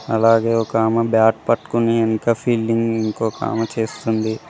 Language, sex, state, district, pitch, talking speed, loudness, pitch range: Telugu, male, Telangana, Mahabubabad, 115 Hz, 120 wpm, -18 LUFS, 110-115 Hz